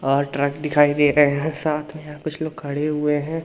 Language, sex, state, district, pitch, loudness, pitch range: Hindi, male, Madhya Pradesh, Umaria, 150 Hz, -21 LUFS, 145-155 Hz